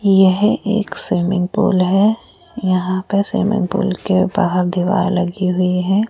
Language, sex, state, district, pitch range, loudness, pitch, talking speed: Hindi, female, Rajasthan, Jaipur, 185-205 Hz, -16 LUFS, 190 Hz, 145 wpm